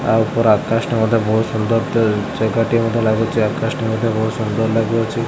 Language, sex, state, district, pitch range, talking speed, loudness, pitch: Odia, male, Odisha, Khordha, 110-115 Hz, 180 wpm, -17 LUFS, 115 Hz